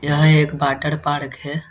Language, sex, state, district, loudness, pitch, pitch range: Hindi, male, Bihar, Jahanabad, -18 LUFS, 145 Hz, 145-150 Hz